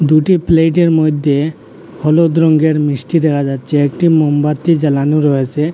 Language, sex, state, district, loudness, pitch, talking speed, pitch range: Bengali, male, Assam, Hailakandi, -13 LUFS, 155 Hz, 125 wpm, 145-160 Hz